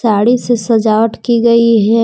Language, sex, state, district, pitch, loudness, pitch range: Hindi, female, Jharkhand, Palamu, 230 Hz, -11 LUFS, 220-235 Hz